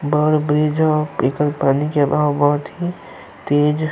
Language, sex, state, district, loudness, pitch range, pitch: Bhojpuri, male, Uttar Pradesh, Ghazipur, -18 LUFS, 145-150 Hz, 150 Hz